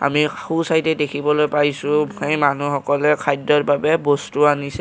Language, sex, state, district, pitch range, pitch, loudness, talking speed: Assamese, male, Assam, Kamrup Metropolitan, 145-150 Hz, 145 Hz, -18 LUFS, 135 wpm